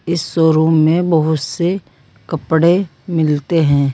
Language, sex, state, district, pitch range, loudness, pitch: Hindi, female, Uttar Pradesh, Saharanpur, 145-170 Hz, -15 LUFS, 160 Hz